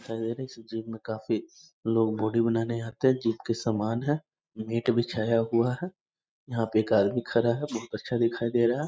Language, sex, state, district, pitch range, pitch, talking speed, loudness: Hindi, male, Bihar, East Champaran, 115-125 Hz, 115 Hz, 205 wpm, -28 LUFS